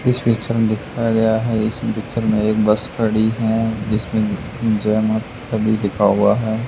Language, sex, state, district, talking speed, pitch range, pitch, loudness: Hindi, male, Haryana, Charkhi Dadri, 180 wpm, 110-115 Hz, 110 Hz, -18 LUFS